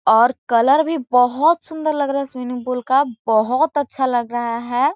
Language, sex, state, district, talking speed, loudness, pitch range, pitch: Hindi, female, Chhattisgarh, Korba, 195 wpm, -18 LUFS, 240-290 Hz, 255 Hz